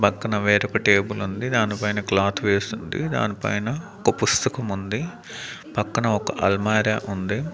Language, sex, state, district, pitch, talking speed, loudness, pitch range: Telugu, male, Andhra Pradesh, Manyam, 105 Hz, 125 wpm, -23 LUFS, 100-115 Hz